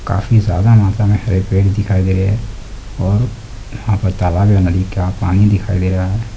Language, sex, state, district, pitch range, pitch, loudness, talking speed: Hindi, male, Uttar Pradesh, Hamirpur, 95-105 Hz, 100 Hz, -15 LUFS, 205 wpm